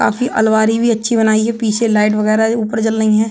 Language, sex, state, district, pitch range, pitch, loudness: Hindi, male, Uttar Pradesh, Budaun, 215-230 Hz, 220 Hz, -14 LUFS